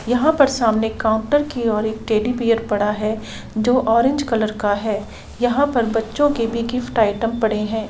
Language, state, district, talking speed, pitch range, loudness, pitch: Santali, Jharkhand, Sahebganj, 190 wpm, 220-245 Hz, -19 LUFS, 225 Hz